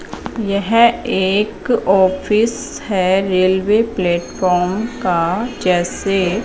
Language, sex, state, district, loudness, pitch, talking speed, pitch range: Hindi, female, Punjab, Fazilka, -16 LUFS, 195 Hz, 75 wpm, 185-225 Hz